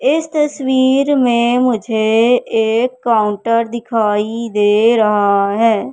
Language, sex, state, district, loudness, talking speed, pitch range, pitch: Hindi, male, Madhya Pradesh, Katni, -14 LUFS, 100 wpm, 215-250 Hz, 230 Hz